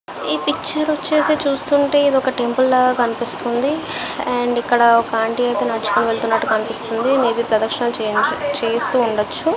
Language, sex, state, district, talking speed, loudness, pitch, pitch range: Telugu, female, Andhra Pradesh, Visakhapatnam, 130 wpm, -17 LUFS, 245 Hz, 235-285 Hz